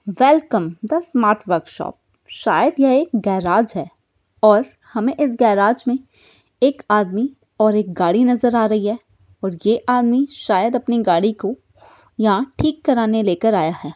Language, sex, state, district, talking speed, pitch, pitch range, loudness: Hindi, female, Bihar, Jahanabad, 160 wpm, 220 Hz, 200-250 Hz, -18 LUFS